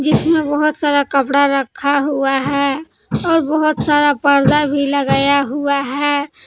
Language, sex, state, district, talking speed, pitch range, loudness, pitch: Hindi, female, Jharkhand, Palamu, 140 wpm, 280-295 Hz, -15 LUFS, 285 Hz